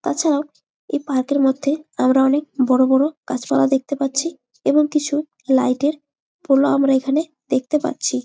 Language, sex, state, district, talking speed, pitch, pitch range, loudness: Bengali, female, West Bengal, Jalpaiguri, 160 wpm, 280 Hz, 265-300 Hz, -19 LUFS